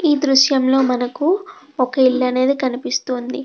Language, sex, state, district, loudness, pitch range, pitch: Telugu, female, Andhra Pradesh, Krishna, -17 LUFS, 255-290 Hz, 265 Hz